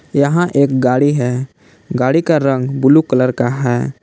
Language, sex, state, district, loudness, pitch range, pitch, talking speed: Hindi, male, Jharkhand, Palamu, -14 LUFS, 125-140 Hz, 135 Hz, 165 wpm